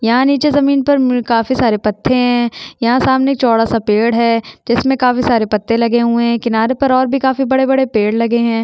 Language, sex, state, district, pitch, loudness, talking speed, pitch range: Hindi, female, Chhattisgarh, Sukma, 235 Hz, -14 LUFS, 185 wpm, 230-265 Hz